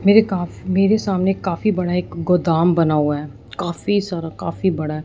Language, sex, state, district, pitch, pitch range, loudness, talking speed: Hindi, male, Punjab, Fazilka, 180 Hz, 160-195 Hz, -19 LUFS, 180 wpm